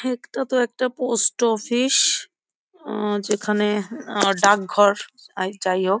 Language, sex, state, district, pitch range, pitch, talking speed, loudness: Bengali, female, West Bengal, Jhargram, 205-255 Hz, 210 Hz, 100 wpm, -21 LUFS